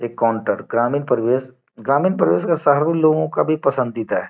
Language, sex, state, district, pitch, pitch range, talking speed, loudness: Hindi, male, Bihar, Gopalganj, 135 Hz, 120-155 Hz, 165 wpm, -18 LUFS